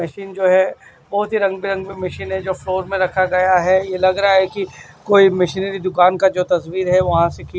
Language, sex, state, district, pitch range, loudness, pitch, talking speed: Hindi, male, Maharashtra, Washim, 185-195 Hz, -17 LUFS, 185 Hz, 220 wpm